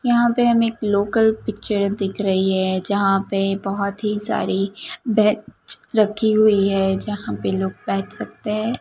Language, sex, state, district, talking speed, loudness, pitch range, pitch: Hindi, female, Gujarat, Gandhinagar, 155 wpm, -19 LUFS, 195-215 Hz, 205 Hz